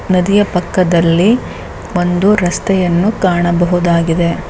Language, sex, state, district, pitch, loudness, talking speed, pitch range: Kannada, female, Karnataka, Bellary, 180 Hz, -13 LUFS, 65 wpm, 175-190 Hz